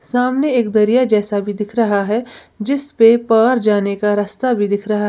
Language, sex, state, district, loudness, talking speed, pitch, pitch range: Hindi, female, Uttar Pradesh, Lalitpur, -15 LUFS, 200 wpm, 220 Hz, 205-245 Hz